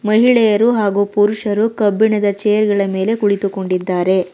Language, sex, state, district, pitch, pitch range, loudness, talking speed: Kannada, female, Karnataka, Bangalore, 205 Hz, 200-215 Hz, -15 LUFS, 110 wpm